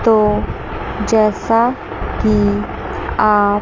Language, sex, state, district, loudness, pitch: Hindi, female, Chandigarh, Chandigarh, -16 LUFS, 205 Hz